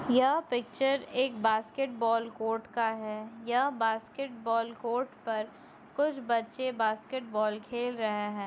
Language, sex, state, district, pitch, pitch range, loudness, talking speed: Hindi, female, Chhattisgarh, Bastar, 230 Hz, 220-255 Hz, -31 LUFS, 140 wpm